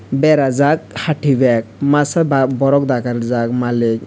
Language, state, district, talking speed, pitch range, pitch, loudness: Kokborok, Tripura, West Tripura, 130 wpm, 120-145 Hz, 135 Hz, -15 LUFS